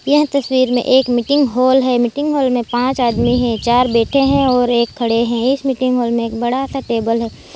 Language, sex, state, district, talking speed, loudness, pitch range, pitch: Hindi, female, Gujarat, Valsad, 230 wpm, -15 LUFS, 235-265 Hz, 250 Hz